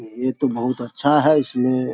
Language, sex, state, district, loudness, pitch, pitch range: Hindi, male, Bihar, Saharsa, -20 LUFS, 130 Hz, 125-140 Hz